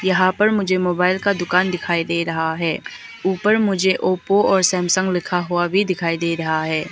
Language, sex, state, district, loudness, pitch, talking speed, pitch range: Hindi, female, Arunachal Pradesh, Lower Dibang Valley, -19 LUFS, 180 Hz, 190 wpm, 170-190 Hz